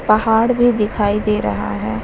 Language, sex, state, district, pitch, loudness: Hindi, female, Bihar, Vaishali, 210 Hz, -16 LUFS